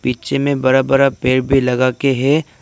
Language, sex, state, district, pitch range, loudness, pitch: Hindi, male, Arunachal Pradesh, Lower Dibang Valley, 130-140 Hz, -15 LUFS, 135 Hz